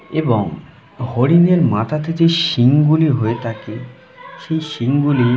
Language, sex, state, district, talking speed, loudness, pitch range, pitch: Bengali, male, West Bengal, Jhargram, 135 wpm, -16 LUFS, 120-165 Hz, 145 Hz